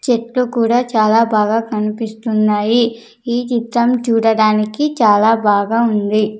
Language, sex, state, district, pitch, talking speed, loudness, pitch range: Telugu, female, Andhra Pradesh, Sri Satya Sai, 225 Hz, 105 wpm, -15 LUFS, 215-235 Hz